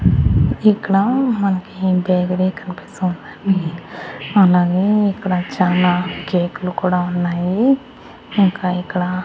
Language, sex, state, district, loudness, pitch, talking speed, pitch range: Telugu, female, Andhra Pradesh, Annamaya, -17 LUFS, 185 Hz, 90 wpm, 180-195 Hz